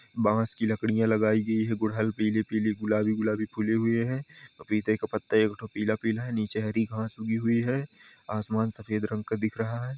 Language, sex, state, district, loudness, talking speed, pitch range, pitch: Hindi, male, Jharkhand, Sahebganj, -28 LUFS, 200 wpm, 110-115 Hz, 110 Hz